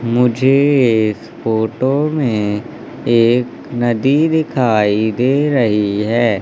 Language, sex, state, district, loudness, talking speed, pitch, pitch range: Hindi, male, Madhya Pradesh, Umaria, -15 LUFS, 95 wpm, 120 Hz, 110-135 Hz